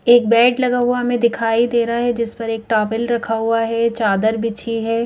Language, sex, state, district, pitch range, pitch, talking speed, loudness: Hindi, female, Madhya Pradesh, Bhopal, 225-240 Hz, 230 Hz, 225 wpm, -17 LUFS